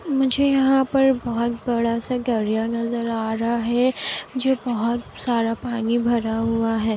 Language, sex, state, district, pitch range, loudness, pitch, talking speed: Hindi, female, Bihar, Kishanganj, 230-255 Hz, -22 LUFS, 235 Hz, 145 wpm